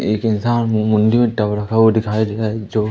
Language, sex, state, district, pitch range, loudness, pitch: Hindi, male, Madhya Pradesh, Katni, 105-110 Hz, -17 LUFS, 110 Hz